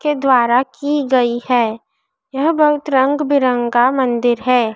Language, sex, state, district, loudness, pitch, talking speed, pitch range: Hindi, female, Madhya Pradesh, Dhar, -15 LUFS, 260 Hz, 140 wpm, 245-290 Hz